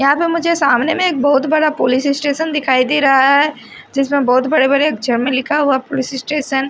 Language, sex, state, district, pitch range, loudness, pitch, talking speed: Hindi, female, Odisha, Sambalpur, 265-300 Hz, -14 LUFS, 280 Hz, 225 wpm